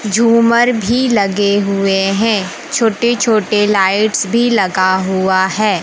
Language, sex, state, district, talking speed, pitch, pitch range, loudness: Hindi, male, Madhya Pradesh, Katni, 125 wpm, 210 Hz, 195-230 Hz, -13 LUFS